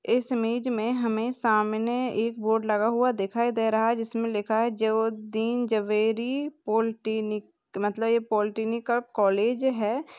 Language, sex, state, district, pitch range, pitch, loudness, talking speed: Hindi, female, Maharashtra, Chandrapur, 215-235 Hz, 225 Hz, -26 LUFS, 145 wpm